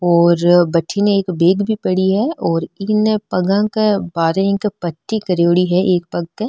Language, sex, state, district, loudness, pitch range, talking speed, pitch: Marwari, female, Rajasthan, Nagaur, -16 LUFS, 175-205 Hz, 175 wpm, 185 Hz